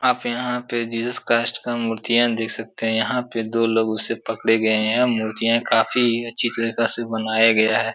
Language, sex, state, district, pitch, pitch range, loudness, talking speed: Hindi, male, Uttar Pradesh, Etah, 115 Hz, 115-120 Hz, -20 LUFS, 205 wpm